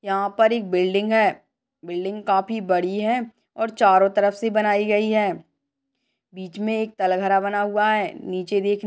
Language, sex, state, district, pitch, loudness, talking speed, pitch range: Hindi, female, Rajasthan, Nagaur, 205 Hz, -21 LUFS, 175 wpm, 195-220 Hz